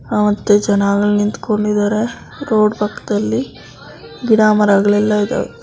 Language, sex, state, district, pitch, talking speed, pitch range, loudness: Kannada, female, Karnataka, Dakshina Kannada, 210 Hz, 85 wpm, 205-215 Hz, -15 LUFS